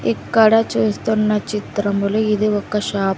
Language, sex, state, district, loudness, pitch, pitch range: Telugu, female, Andhra Pradesh, Sri Satya Sai, -18 LUFS, 205 Hz, 195-215 Hz